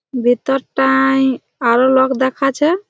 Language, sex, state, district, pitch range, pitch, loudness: Bengali, female, West Bengal, Jhargram, 260-270 Hz, 265 Hz, -15 LUFS